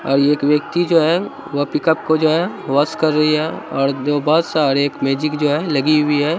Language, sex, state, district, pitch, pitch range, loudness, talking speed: Hindi, male, Bihar, Saharsa, 150 Hz, 145-160 Hz, -17 LUFS, 235 wpm